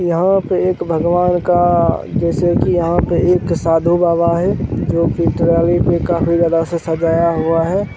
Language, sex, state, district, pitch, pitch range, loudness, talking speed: Maithili, male, Bihar, Begusarai, 170 Hz, 165-175 Hz, -15 LUFS, 175 wpm